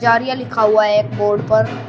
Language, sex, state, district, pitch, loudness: Hindi, male, Uttar Pradesh, Shamli, 185 Hz, -16 LUFS